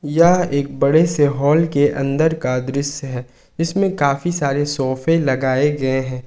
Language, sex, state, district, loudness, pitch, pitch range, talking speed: Hindi, male, Jharkhand, Ranchi, -18 LUFS, 140 Hz, 130-160 Hz, 165 wpm